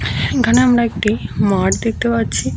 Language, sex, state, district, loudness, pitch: Bengali, female, West Bengal, Paschim Medinipur, -16 LUFS, 185 Hz